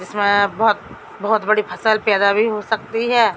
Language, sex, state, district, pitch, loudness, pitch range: Hindi, female, Jharkhand, Sahebganj, 215 Hz, -18 LUFS, 205-220 Hz